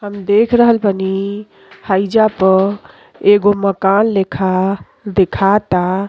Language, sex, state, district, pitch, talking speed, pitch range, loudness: Bhojpuri, female, Uttar Pradesh, Deoria, 200 Hz, 100 wpm, 190-205 Hz, -14 LUFS